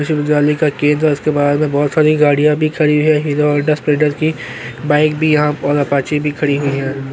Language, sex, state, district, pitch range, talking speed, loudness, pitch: Hindi, male, Chhattisgarh, Korba, 145-150 Hz, 220 wpm, -14 LUFS, 150 Hz